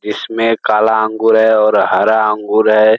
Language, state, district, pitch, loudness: Surjapuri, Bihar, Kishanganj, 110 Hz, -12 LUFS